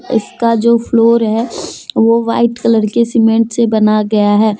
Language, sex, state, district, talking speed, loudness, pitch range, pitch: Hindi, female, Jharkhand, Deoghar, 170 wpm, -12 LUFS, 220-235 Hz, 230 Hz